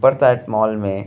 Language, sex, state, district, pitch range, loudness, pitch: Bhojpuri, male, Uttar Pradesh, Gorakhpur, 105-125 Hz, -17 LUFS, 110 Hz